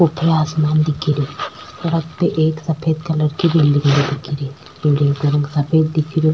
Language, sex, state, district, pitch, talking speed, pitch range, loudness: Rajasthani, female, Rajasthan, Churu, 155 Hz, 150 wpm, 145-160 Hz, -17 LUFS